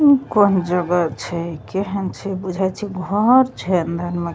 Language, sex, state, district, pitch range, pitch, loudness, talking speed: Maithili, female, Bihar, Begusarai, 175-200 Hz, 185 Hz, -19 LUFS, 180 wpm